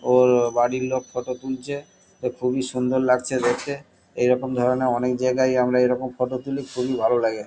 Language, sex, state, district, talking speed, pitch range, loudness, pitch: Bengali, male, West Bengal, Kolkata, 185 wpm, 125-130 Hz, -22 LUFS, 125 Hz